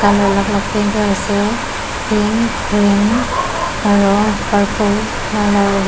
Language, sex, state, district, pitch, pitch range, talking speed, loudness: Nagamese, female, Nagaland, Kohima, 205 Hz, 200-210 Hz, 90 wpm, -15 LUFS